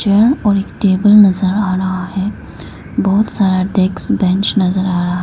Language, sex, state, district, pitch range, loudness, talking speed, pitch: Hindi, female, Arunachal Pradesh, Lower Dibang Valley, 185-205 Hz, -14 LUFS, 160 wpm, 195 Hz